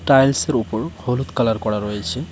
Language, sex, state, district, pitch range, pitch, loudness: Bengali, male, West Bengal, Cooch Behar, 105-130 Hz, 110 Hz, -20 LUFS